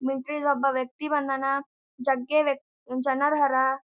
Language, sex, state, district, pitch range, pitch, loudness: Kannada, male, Karnataka, Gulbarga, 265-290 Hz, 275 Hz, -26 LUFS